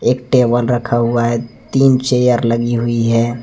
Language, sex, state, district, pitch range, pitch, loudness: Hindi, male, Jharkhand, Deoghar, 115-125 Hz, 120 Hz, -15 LUFS